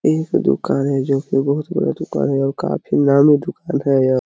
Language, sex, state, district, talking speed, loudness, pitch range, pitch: Hindi, male, Chhattisgarh, Korba, 210 wpm, -18 LUFS, 135-155 Hz, 140 Hz